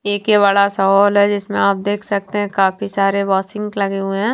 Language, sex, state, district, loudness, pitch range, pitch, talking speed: Hindi, female, Haryana, Charkhi Dadri, -16 LUFS, 195-205 Hz, 200 Hz, 250 wpm